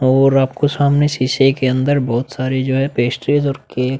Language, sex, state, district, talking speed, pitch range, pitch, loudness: Hindi, male, Uttar Pradesh, Budaun, 210 wpm, 130-140 Hz, 135 Hz, -16 LUFS